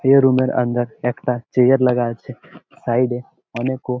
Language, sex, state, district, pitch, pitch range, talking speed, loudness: Bengali, male, West Bengal, Jalpaiguri, 125 Hz, 120-130 Hz, 165 wpm, -19 LUFS